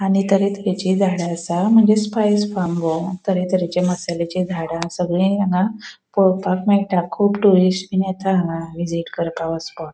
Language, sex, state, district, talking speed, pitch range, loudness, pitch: Konkani, female, Goa, North and South Goa, 125 wpm, 170-195 Hz, -19 LUFS, 185 Hz